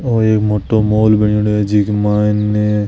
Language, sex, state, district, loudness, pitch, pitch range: Marwari, male, Rajasthan, Nagaur, -14 LUFS, 105 Hz, 105-110 Hz